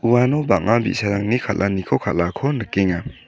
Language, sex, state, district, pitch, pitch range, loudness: Garo, male, Meghalaya, South Garo Hills, 105 Hz, 95-120 Hz, -20 LUFS